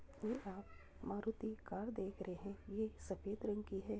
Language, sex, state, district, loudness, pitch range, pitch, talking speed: Hindi, female, Uttar Pradesh, Muzaffarnagar, -46 LUFS, 195-220 Hz, 205 Hz, 195 wpm